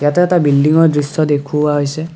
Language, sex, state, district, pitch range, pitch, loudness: Assamese, male, Assam, Kamrup Metropolitan, 145-160 Hz, 150 Hz, -13 LUFS